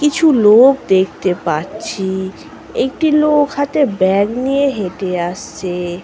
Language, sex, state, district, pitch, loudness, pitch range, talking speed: Bengali, female, West Bengal, Malda, 210 Hz, -15 LUFS, 190-280 Hz, 120 wpm